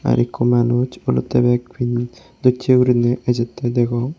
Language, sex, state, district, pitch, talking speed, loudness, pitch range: Chakma, male, Tripura, West Tripura, 120 Hz, 130 wpm, -18 LUFS, 120-125 Hz